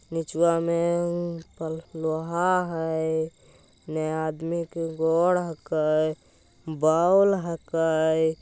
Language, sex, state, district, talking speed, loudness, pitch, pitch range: Magahi, male, Bihar, Jamui, 95 wpm, -25 LUFS, 160 Hz, 160-170 Hz